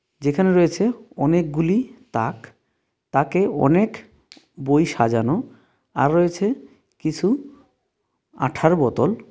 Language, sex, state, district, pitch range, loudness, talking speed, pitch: Bengali, male, West Bengal, Darjeeling, 145-210 Hz, -21 LUFS, 85 wpm, 170 Hz